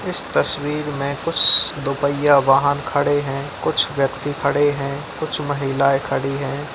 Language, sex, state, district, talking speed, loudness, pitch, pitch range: Hindi, male, Bihar, Darbhanga, 160 wpm, -18 LUFS, 140 Hz, 140-145 Hz